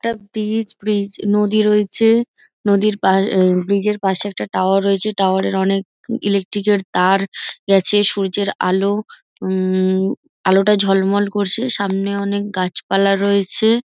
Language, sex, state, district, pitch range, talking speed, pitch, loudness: Bengali, female, West Bengal, Dakshin Dinajpur, 195-210 Hz, 130 wpm, 200 Hz, -17 LUFS